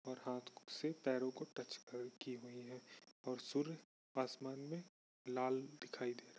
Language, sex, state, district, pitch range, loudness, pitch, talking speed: Hindi, male, Bihar, Bhagalpur, 125-140 Hz, -46 LUFS, 130 Hz, 160 wpm